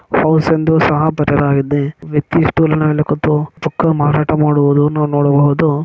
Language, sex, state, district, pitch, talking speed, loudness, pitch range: Kannada, male, Karnataka, Mysore, 150 Hz, 145 wpm, -14 LUFS, 145-155 Hz